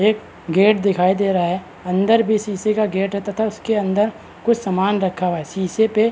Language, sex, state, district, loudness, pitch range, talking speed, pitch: Hindi, male, Uttarakhand, Uttarkashi, -19 LUFS, 185-215 Hz, 235 wpm, 200 Hz